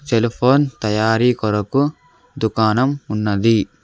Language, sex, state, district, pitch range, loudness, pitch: Telugu, male, Andhra Pradesh, Sri Satya Sai, 110-135 Hz, -18 LUFS, 115 Hz